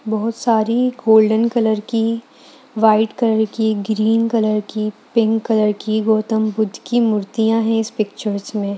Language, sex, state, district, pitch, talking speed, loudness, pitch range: Hindi, female, Bihar, Gaya, 220 Hz, 150 wpm, -17 LUFS, 215-230 Hz